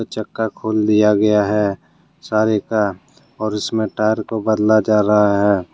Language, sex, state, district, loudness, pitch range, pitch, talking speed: Hindi, male, Jharkhand, Deoghar, -17 LUFS, 105-110 Hz, 105 Hz, 155 wpm